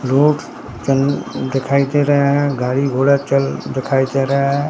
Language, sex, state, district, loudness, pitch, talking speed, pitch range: Hindi, male, Bihar, Katihar, -17 LUFS, 140 Hz, 165 wpm, 135-140 Hz